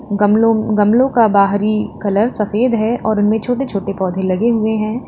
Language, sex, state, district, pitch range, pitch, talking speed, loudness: Hindi, female, Uttar Pradesh, Lalitpur, 205-230 Hz, 215 Hz, 175 wpm, -15 LUFS